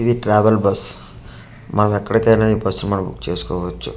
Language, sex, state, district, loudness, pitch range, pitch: Telugu, male, Andhra Pradesh, Manyam, -18 LUFS, 95-110 Hz, 100 Hz